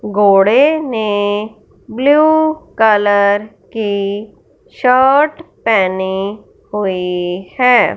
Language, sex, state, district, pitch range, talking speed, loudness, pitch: Hindi, male, Punjab, Fazilka, 200-255 Hz, 70 wpm, -13 LUFS, 210 Hz